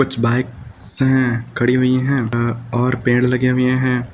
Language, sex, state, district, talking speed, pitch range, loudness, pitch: Hindi, male, Uttar Pradesh, Lucknow, 175 wpm, 120-130 Hz, -17 LUFS, 125 Hz